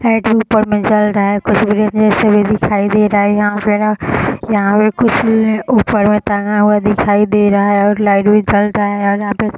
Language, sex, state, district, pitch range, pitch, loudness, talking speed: Hindi, female, Bihar, Sitamarhi, 205-215 Hz, 210 Hz, -12 LUFS, 230 wpm